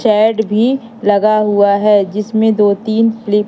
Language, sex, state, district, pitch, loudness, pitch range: Hindi, female, Madhya Pradesh, Katni, 215 Hz, -13 LUFS, 205-220 Hz